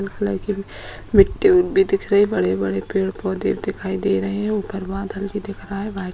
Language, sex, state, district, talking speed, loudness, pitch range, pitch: Hindi, female, Bihar, Bhagalpur, 215 wpm, -20 LUFS, 190-210 Hz, 200 Hz